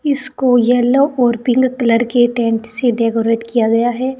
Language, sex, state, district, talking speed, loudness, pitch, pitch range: Hindi, female, Uttar Pradesh, Saharanpur, 170 wpm, -14 LUFS, 245 Hz, 230-255 Hz